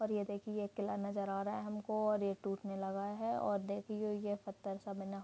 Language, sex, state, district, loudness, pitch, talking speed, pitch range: Hindi, female, Bihar, Sitamarhi, -40 LUFS, 205 Hz, 250 wpm, 195-210 Hz